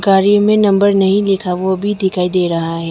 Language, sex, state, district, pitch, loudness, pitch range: Hindi, female, Arunachal Pradesh, Lower Dibang Valley, 190 Hz, -14 LUFS, 180-200 Hz